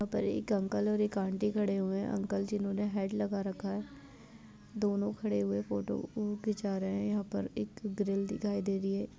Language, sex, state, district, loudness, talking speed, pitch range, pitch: Hindi, female, Chhattisgarh, Kabirdham, -34 LUFS, 200 wpm, 195-210 Hz, 205 Hz